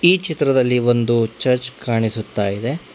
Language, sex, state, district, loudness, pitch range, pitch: Kannada, male, Karnataka, Bangalore, -17 LUFS, 115-135 Hz, 120 Hz